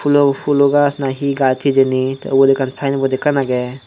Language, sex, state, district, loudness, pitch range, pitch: Chakma, male, Tripura, Dhalai, -15 LUFS, 130-140 Hz, 135 Hz